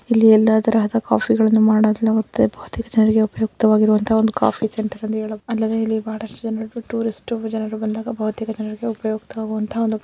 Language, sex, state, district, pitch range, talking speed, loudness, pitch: Kannada, female, Karnataka, Dakshina Kannada, 215-225 Hz, 70 wpm, -19 LUFS, 220 Hz